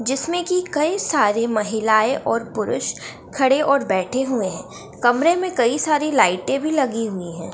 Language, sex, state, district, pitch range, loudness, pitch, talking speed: Hindi, female, Bihar, Gaya, 220-300 Hz, -20 LUFS, 265 Hz, 165 wpm